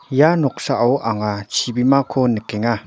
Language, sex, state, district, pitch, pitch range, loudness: Garo, male, Meghalaya, North Garo Hills, 125 Hz, 115-135 Hz, -18 LUFS